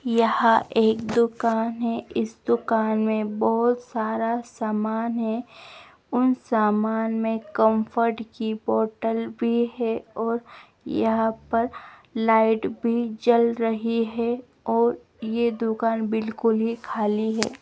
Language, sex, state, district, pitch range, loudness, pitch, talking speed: Hindi, female, Himachal Pradesh, Shimla, 220-235 Hz, -24 LUFS, 225 Hz, 115 wpm